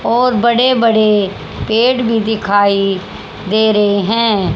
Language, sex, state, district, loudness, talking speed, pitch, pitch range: Hindi, female, Haryana, Charkhi Dadri, -13 LUFS, 120 wpm, 220 Hz, 200-230 Hz